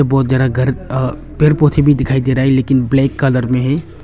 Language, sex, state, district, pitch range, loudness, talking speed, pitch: Hindi, male, Arunachal Pradesh, Longding, 130-140 Hz, -14 LUFS, 240 wpm, 135 Hz